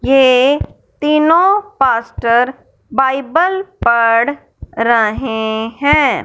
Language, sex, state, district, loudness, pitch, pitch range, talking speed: Hindi, male, Punjab, Fazilka, -13 LUFS, 265 Hz, 230-300 Hz, 65 wpm